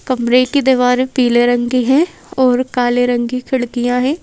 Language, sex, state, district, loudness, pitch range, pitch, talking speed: Hindi, female, Madhya Pradesh, Bhopal, -14 LUFS, 245-260 Hz, 250 Hz, 185 wpm